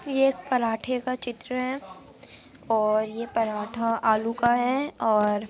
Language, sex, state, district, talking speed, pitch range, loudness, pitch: Hindi, female, Andhra Pradesh, Anantapur, 155 wpm, 220-255 Hz, -26 LUFS, 230 Hz